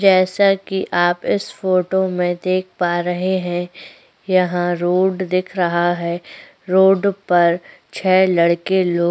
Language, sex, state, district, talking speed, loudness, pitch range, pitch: Hindi, female, Chhattisgarh, Korba, 130 wpm, -18 LUFS, 175-190 Hz, 180 Hz